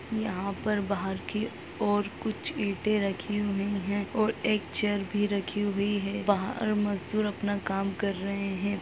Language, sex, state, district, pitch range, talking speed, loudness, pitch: Hindi, female, Bihar, Muzaffarpur, 200-210 Hz, 165 wpm, -30 LUFS, 205 Hz